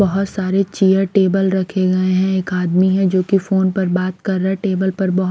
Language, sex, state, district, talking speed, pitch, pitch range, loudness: Hindi, female, Himachal Pradesh, Shimla, 235 wpm, 190 Hz, 185-195 Hz, -17 LUFS